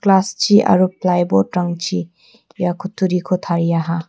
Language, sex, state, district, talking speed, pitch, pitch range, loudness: Garo, female, Meghalaya, West Garo Hills, 90 wpm, 180 Hz, 170-190 Hz, -17 LUFS